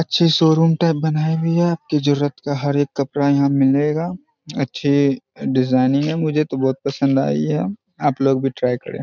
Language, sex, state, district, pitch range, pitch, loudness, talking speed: Hindi, male, Bihar, Araria, 135-160 Hz, 145 Hz, -18 LUFS, 185 wpm